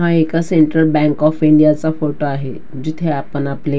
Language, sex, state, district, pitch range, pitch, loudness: Marathi, female, Maharashtra, Dhule, 145-160 Hz, 155 Hz, -15 LUFS